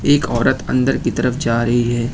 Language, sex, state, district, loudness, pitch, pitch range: Hindi, male, Uttar Pradesh, Lucknow, -17 LUFS, 120 Hz, 120-130 Hz